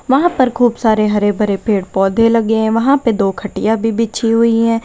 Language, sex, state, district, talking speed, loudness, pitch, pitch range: Hindi, female, Uttar Pradesh, Lalitpur, 220 wpm, -14 LUFS, 225 Hz, 210-230 Hz